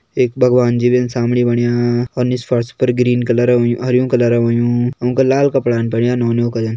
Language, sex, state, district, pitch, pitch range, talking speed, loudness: Kumaoni, male, Uttarakhand, Tehri Garhwal, 120 Hz, 120-125 Hz, 205 wpm, -15 LUFS